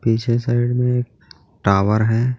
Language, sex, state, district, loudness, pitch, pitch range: Hindi, male, Jharkhand, Garhwa, -19 LUFS, 115 Hz, 105-120 Hz